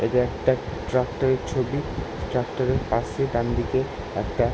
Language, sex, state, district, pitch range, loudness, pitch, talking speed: Bengali, male, West Bengal, Jalpaiguri, 120-130 Hz, -25 LUFS, 130 Hz, 130 wpm